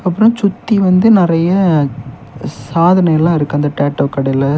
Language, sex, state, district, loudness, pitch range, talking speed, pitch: Tamil, male, Tamil Nadu, Kanyakumari, -12 LUFS, 145-190 Hz, 130 wpm, 165 Hz